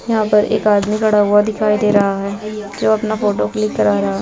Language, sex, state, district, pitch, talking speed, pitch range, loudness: Hindi, female, Uttar Pradesh, Gorakhpur, 210 Hz, 240 wpm, 200-215 Hz, -15 LUFS